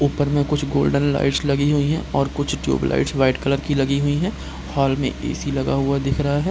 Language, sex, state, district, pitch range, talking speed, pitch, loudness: Hindi, male, Bihar, Gopalganj, 135-145 Hz, 240 wpm, 140 Hz, -20 LUFS